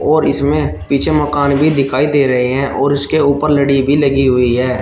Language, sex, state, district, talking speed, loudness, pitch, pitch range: Hindi, male, Uttar Pradesh, Shamli, 210 wpm, -13 LUFS, 140 Hz, 135-145 Hz